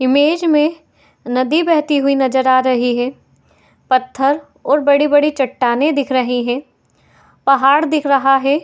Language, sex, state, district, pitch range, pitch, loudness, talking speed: Hindi, female, Uttar Pradesh, Etah, 255-295 Hz, 275 Hz, -15 LUFS, 145 wpm